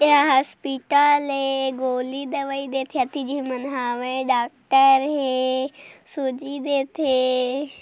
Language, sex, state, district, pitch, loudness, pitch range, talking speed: Hindi, female, Chhattisgarh, Korba, 270 Hz, -22 LUFS, 260-280 Hz, 115 wpm